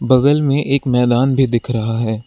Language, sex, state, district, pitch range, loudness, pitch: Hindi, male, Arunachal Pradesh, Lower Dibang Valley, 115-135 Hz, -15 LUFS, 125 Hz